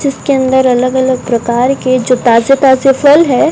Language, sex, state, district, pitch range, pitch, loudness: Hindi, female, Rajasthan, Bikaner, 250-275 Hz, 260 Hz, -10 LUFS